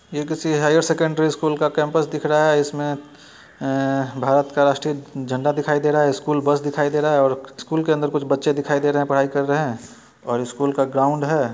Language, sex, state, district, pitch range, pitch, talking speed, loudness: Hindi, male, Bihar, Muzaffarpur, 140-150 Hz, 145 Hz, 230 wpm, -20 LUFS